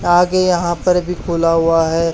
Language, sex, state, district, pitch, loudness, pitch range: Hindi, male, Haryana, Charkhi Dadri, 175 Hz, -15 LUFS, 165-180 Hz